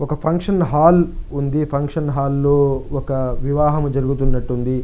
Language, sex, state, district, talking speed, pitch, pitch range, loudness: Telugu, male, Andhra Pradesh, Chittoor, 125 wpm, 140 Hz, 135-150 Hz, -18 LUFS